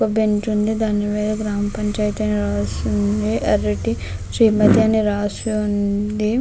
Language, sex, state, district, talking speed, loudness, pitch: Telugu, female, Andhra Pradesh, Krishna, 140 wpm, -19 LUFS, 210 Hz